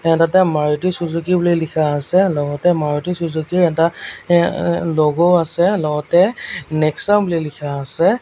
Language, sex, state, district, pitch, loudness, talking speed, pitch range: Assamese, male, Assam, Sonitpur, 165 Hz, -17 LUFS, 145 wpm, 150-175 Hz